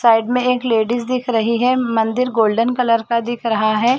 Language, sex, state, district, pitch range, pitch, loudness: Hindi, female, Chhattisgarh, Bilaspur, 225-250 Hz, 235 Hz, -17 LUFS